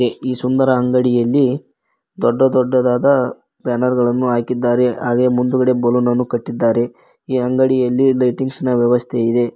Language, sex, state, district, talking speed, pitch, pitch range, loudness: Kannada, male, Karnataka, Koppal, 120 wpm, 125 Hz, 120-130 Hz, -16 LUFS